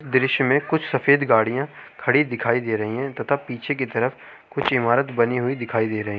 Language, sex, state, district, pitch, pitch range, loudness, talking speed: Hindi, male, Uttar Pradesh, Gorakhpur, 130 Hz, 115-140 Hz, -22 LUFS, 205 wpm